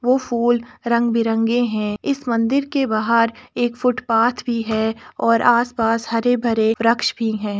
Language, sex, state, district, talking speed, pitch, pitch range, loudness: Hindi, female, Uttar Pradesh, Etah, 165 wpm, 230 Hz, 225-245 Hz, -19 LUFS